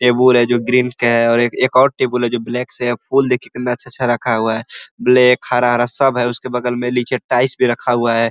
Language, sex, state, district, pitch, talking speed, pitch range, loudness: Hindi, male, Uttar Pradesh, Ghazipur, 125 Hz, 260 wpm, 120-125 Hz, -15 LUFS